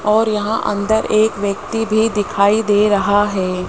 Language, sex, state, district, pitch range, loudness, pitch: Hindi, male, Rajasthan, Jaipur, 200-220 Hz, -16 LUFS, 210 Hz